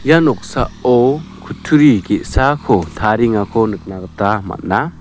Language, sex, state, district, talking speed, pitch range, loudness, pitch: Garo, male, Meghalaya, South Garo Hills, 95 wpm, 100-135 Hz, -15 LUFS, 110 Hz